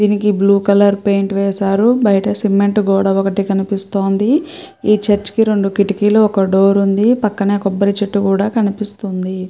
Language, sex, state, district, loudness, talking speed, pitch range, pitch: Telugu, female, Andhra Pradesh, Chittoor, -14 LUFS, 145 wpm, 195-210 Hz, 200 Hz